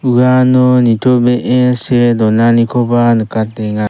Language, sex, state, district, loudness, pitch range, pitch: Garo, male, Meghalaya, South Garo Hills, -11 LUFS, 115-125 Hz, 120 Hz